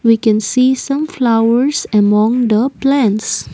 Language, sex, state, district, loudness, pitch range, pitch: English, female, Assam, Kamrup Metropolitan, -13 LUFS, 215-265 Hz, 230 Hz